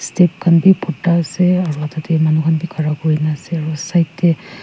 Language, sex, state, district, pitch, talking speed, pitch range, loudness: Nagamese, female, Nagaland, Kohima, 165 Hz, 195 wpm, 155-175 Hz, -16 LUFS